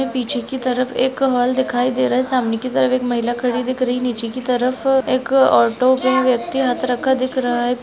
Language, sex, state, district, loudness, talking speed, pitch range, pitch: Hindi, female, Rajasthan, Nagaur, -18 LUFS, 220 wpm, 245-260 Hz, 255 Hz